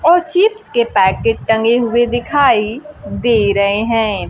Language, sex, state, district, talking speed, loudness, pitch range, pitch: Hindi, female, Bihar, Kaimur, 140 wpm, -14 LUFS, 225-350 Hz, 240 Hz